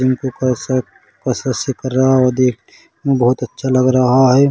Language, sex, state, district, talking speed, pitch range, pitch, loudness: Hindi, male, Chhattisgarh, Rajnandgaon, 170 wpm, 125-130 Hz, 130 Hz, -16 LUFS